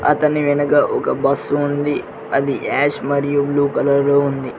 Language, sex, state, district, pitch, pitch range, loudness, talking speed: Telugu, male, Telangana, Mahabubabad, 145 Hz, 140-145 Hz, -17 LUFS, 155 wpm